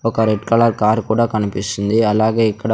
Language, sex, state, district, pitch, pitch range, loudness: Telugu, male, Andhra Pradesh, Sri Satya Sai, 110 Hz, 105-115 Hz, -16 LUFS